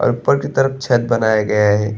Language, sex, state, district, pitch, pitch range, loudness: Hindi, male, Chhattisgarh, Bastar, 115 Hz, 105-135 Hz, -16 LUFS